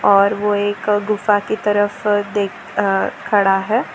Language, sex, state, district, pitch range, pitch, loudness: Hindi, female, Gujarat, Valsad, 200-210 Hz, 205 Hz, -17 LUFS